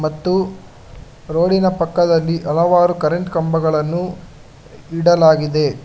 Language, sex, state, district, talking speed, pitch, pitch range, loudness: Kannada, male, Karnataka, Bangalore, 70 wpm, 165 Hz, 150-175 Hz, -16 LUFS